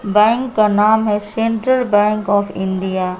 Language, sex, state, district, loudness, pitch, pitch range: Hindi, female, Bihar, West Champaran, -16 LUFS, 210 Hz, 200-225 Hz